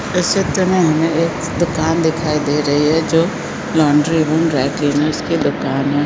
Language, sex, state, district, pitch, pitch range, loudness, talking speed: Hindi, female, Chhattisgarh, Korba, 155 Hz, 145-165 Hz, -16 LUFS, 170 wpm